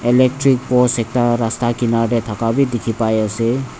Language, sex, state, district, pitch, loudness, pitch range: Nagamese, male, Nagaland, Dimapur, 120 Hz, -17 LUFS, 115-125 Hz